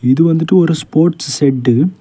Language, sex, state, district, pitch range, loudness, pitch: Tamil, male, Tamil Nadu, Kanyakumari, 140-165 Hz, -13 LUFS, 160 Hz